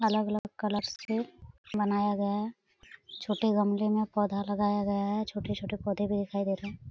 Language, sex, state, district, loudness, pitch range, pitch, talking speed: Hindi, female, Bihar, Araria, -31 LUFS, 200-210 Hz, 205 Hz, 175 wpm